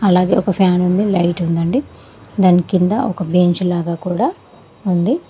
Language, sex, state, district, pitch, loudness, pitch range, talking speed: Telugu, female, Telangana, Mahabubabad, 180 Hz, -16 LUFS, 175-195 Hz, 145 wpm